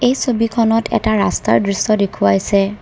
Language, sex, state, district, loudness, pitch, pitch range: Assamese, female, Assam, Kamrup Metropolitan, -16 LUFS, 215 Hz, 200-230 Hz